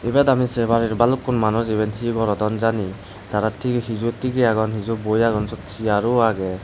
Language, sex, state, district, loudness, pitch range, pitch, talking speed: Chakma, male, Tripura, Dhalai, -21 LUFS, 105-120 Hz, 110 Hz, 190 wpm